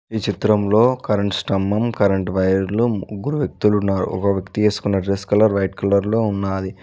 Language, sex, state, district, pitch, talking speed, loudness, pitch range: Telugu, male, Telangana, Mahabubabad, 100 Hz, 165 wpm, -19 LUFS, 95-105 Hz